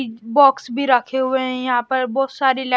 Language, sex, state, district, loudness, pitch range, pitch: Hindi, male, Maharashtra, Washim, -18 LUFS, 250-265 Hz, 260 Hz